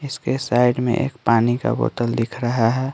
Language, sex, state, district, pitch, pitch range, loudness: Hindi, male, Bihar, Patna, 120 Hz, 115-130 Hz, -20 LUFS